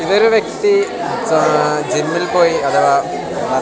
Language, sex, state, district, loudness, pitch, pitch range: Malayalam, male, Kerala, Kasaragod, -15 LUFS, 200 Hz, 170-265 Hz